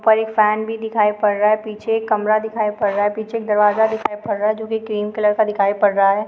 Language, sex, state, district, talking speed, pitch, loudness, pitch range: Hindi, female, Bihar, Muzaffarpur, 295 wpm, 215 Hz, -18 LUFS, 210-220 Hz